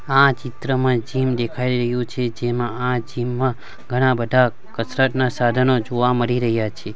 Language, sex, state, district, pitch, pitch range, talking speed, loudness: Gujarati, male, Gujarat, Valsad, 125 Hz, 120-130 Hz, 155 wpm, -20 LUFS